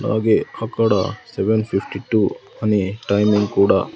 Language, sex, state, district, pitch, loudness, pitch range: Telugu, male, Andhra Pradesh, Sri Satya Sai, 105 Hz, -19 LUFS, 100-110 Hz